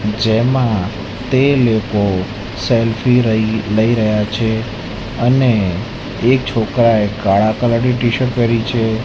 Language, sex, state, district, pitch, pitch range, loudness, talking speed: Gujarati, male, Gujarat, Gandhinagar, 115 Hz, 105-120 Hz, -15 LUFS, 115 wpm